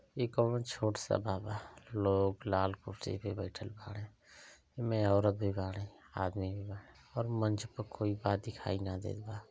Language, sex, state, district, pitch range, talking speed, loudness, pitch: Bhojpuri, male, Uttar Pradesh, Ghazipur, 95-110 Hz, 170 wpm, -36 LUFS, 105 Hz